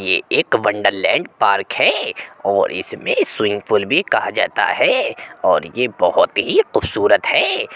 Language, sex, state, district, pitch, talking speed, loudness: Hindi, male, Uttar Pradesh, Jyotiba Phule Nagar, 385 Hz, 155 wpm, -17 LUFS